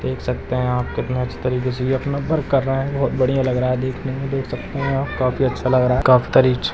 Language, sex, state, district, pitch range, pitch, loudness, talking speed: Hindi, male, Bihar, Purnia, 125-135 Hz, 130 Hz, -20 LUFS, 285 wpm